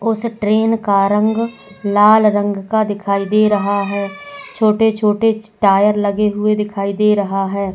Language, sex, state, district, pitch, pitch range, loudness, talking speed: Hindi, female, Goa, North and South Goa, 210 Hz, 200-220 Hz, -15 LUFS, 145 wpm